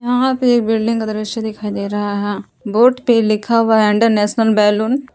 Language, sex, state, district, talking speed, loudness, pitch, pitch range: Hindi, female, Jharkhand, Palamu, 200 wpm, -15 LUFS, 220 Hz, 210-235 Hz